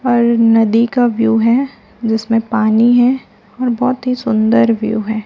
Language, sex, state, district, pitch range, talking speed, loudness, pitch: Hindi, female, Chhattisgarh, Raipur, 225-245 Hz, 160 wpm, -14 LUFS, 230 Hz